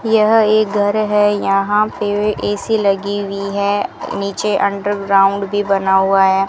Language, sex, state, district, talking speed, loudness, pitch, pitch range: Hindi, female, Rajasthan, Bikaner, 155 wpm, -15 LUFS, 200 Hz, 195-210 Hz